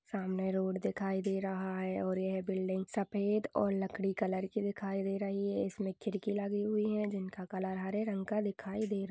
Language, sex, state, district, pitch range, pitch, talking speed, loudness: Hindi, female, Maharashtra, Nagpur, 190-205 Hz, 195 Hz, 205 wpm, -36 LUFS